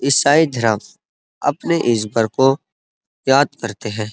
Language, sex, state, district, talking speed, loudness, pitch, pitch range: Hindi, male, Uttar Pradesh, Muzaffarnagar, 115 wpm, -17 LUFS, 120 Hz, 110-140 Hz